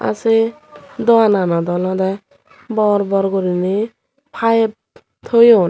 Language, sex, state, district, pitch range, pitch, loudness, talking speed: Chakma, female, Tripura, Dhalai, 190-230 Hz, 215 Hz, -16 LUFS, 95 wpm